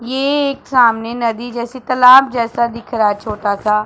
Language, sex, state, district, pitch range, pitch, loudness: Hindi, female, Punjab, Pathankot, 225-255 Hz, 235 Hz, -14 LUFS